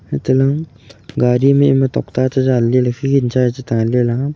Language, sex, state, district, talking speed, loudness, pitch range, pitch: Wancho, male, Arunachal Pradesh, Longding, 180 wpm, -15 LUFS, 125-135 Hz, 130 Hz